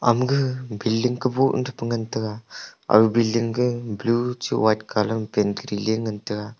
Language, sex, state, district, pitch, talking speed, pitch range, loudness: Wancho, male, Arunachal Pradesh, Longding, 115 Hz, 190 wpm, 110-125 Hz, -23 LUFS